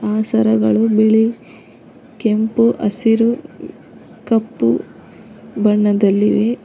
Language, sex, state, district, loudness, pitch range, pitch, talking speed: Kannada, female, Karnataka, Koppal, -16 LUFS, 210-230 Hz, 220 Hz, 65 wpm